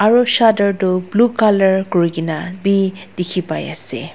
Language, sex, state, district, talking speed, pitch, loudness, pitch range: Nagamese, female, Nagaland, Dimapur, 145 wpm, 190 Hz, -16 LUFS, 180-210 Hz